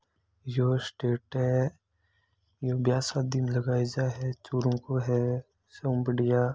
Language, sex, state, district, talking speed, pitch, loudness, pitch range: Hindi, male, Rajasthan, Churu, 155 wpm, 125 Hz, -29 LUFS, 120-130 Hz